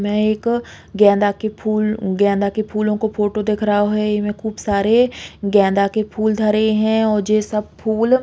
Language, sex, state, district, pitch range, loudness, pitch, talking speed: Bundeli, female, Uttar Pradesh, Hamirpur, 205-215 Hz, -18 LUFS, 215 Hz, 190 wpm